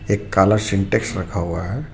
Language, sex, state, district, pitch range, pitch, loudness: Hindi, male, Jharkhand, Ranchi, 95-110 Hz, 100 Hz, -20 LUFS